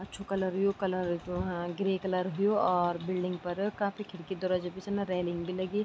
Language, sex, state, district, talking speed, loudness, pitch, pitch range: Garhwali, female, Uttarakhand, Tehri Garhwal, 215 wpm, -32 LUFS, 185 Hz, 180-195 Hz